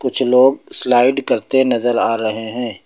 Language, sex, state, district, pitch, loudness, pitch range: Hindi, male, Uttar Pradesh, Lucknow, 125 Hz, -16 LUFS, 115-130 Hz